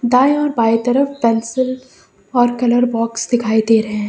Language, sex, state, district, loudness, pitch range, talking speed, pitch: Hindi, female, Uttar Pradesh, Lucknow, -16 LUFS, 225-255 Hz, 190 wpm, 240 Hz